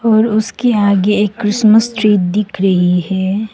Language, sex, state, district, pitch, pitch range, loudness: Hindi, female, Arunachal Pradesh, Longding, 210 Hz, 195-220 Hz, -13 LUFS